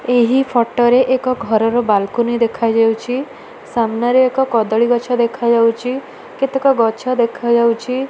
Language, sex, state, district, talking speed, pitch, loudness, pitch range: Odia, female, Odisha, Malkangiri, 95 wpm, 240 Hz, -15 LUFS, 230-255 Hz